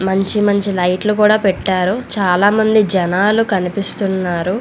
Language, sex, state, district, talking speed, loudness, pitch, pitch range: Telugu, female, Andhra Pradesh, Visakhapatnam, 115 wpm, -15 LUFS, 195 Hz, 185-210 Hz